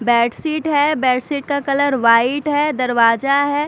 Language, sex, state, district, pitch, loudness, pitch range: Hindi, female, Bihar, Katihar, 280 Hz, -16 LUFS, 245-290 Hz